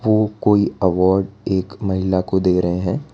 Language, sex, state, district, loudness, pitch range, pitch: Hindi, male, Gujarat, Valsad, -18 LUFS, 95-105 Hz, 95 Hz